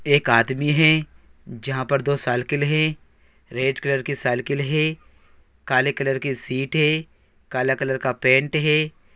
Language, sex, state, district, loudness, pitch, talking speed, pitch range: Hindi, male, Andhra Pradesh, Anantapur, -21 LUFS, 135 Hz, 150 wpm, 125-150 Hz